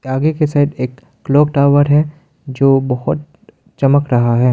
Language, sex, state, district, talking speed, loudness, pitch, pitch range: Hindi, male, Arunachal Pradesh, Lower Dibang Valley, 160 wpm, -14 LUFS, 140 Hz, 130-150 Hz